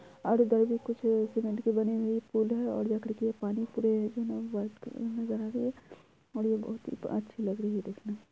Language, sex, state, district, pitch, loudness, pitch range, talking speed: Hindi, female, Bihar, Araria, 225 Hz, -32 LUFS, 220-230 Hz, 135 wpm